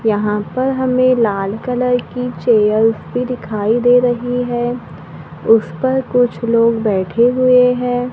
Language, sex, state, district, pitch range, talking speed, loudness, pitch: Hindi, female, Maharashtra, Gondia, 220-250 Hz, 140 wpm, -15 LUFS, 245 Hz